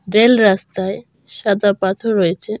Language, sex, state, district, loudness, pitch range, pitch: Bengali, female, Tripura, Dhalai, -16 LUFS, 190-215 Hz, 200 Hz